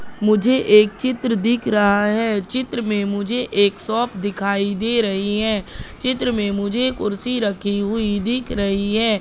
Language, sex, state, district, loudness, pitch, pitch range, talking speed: Hindi, female, Madhya Pradesh, Katni, -19 LUFS, 210 Hz, 200-240 Hz, 155 wpm